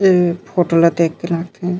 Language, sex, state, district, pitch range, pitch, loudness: Chhattisgarhi, male, Chhattisgarh, Raigarh, 170-180 Hz, 175 Hz, -16 LUFS